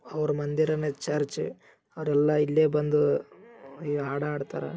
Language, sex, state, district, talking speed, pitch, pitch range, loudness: Kannada, male, Karnataka, Gulbarga, 115 wpm, 150 Hz, 145-155 Hz, -27 LUFS